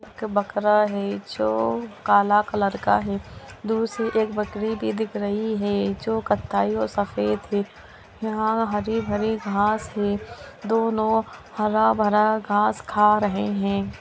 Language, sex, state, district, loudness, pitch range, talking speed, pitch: Magahi, female, Bihar, Gaya, -23 LUFS, 200-220 Hz, 140 wpm, 210 Hz